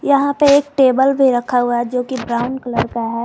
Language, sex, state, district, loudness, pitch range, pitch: Hindi, female, Jharkhand, Garhwa, -16 LUFS, 240-275 Hz, 255 Hz